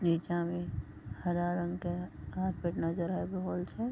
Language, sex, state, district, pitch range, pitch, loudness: Maithili, female, Bihar, Vaishali, 165-180 Hz, 175 Hz, -35 LUFS